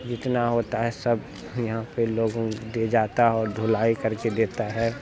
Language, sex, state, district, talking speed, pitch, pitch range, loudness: Hindi, male, Bihar, Jahanabad, 165 wpm, 115 Hz, 110-120 Hz, -25 LUFS